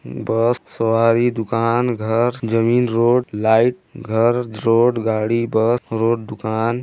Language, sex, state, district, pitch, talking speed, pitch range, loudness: Hindi, male, Chhattisgarh, Sarguja, 115 Hz, 125 wpm, 110-120 Hz, -18 LUFS